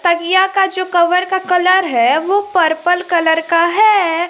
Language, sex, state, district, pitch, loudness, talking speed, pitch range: Hindi, female, Jharkhand, Garhwa, 360 Hz, -13 LUFS, 165 wpm, 340-380 Hz